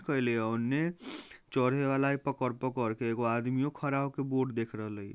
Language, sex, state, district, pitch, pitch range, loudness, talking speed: Bajjika, male, Bihar, Vaishali, 130 Hz, 115-140 Hz, -32 LUFS, 150 wpm